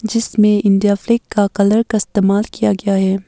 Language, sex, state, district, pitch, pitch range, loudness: Hindi, female, Arunachal Pradesh, Papum Pare, 205 Hz, 200-220 Hz, -15 LUFS